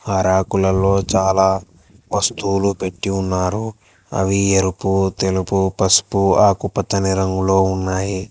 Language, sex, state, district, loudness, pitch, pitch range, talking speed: Telugu, male, Telangana, Hyderabad, -17 LUFS, 95 Hz, 95-100 Hz, 95 wpm